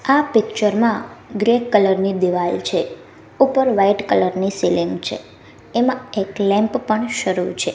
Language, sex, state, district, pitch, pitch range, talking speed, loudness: Gujarati, female, Gujarat, Gandhinagar, 215 Hz, 195-245 Hz, 155 wpm, -18 LUFS